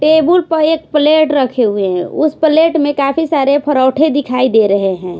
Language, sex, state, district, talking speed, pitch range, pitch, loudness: Hindi, female, Punjab, Pathankot, 195 wpm, 250-315 Hz, 290 Hz, -12 LUFS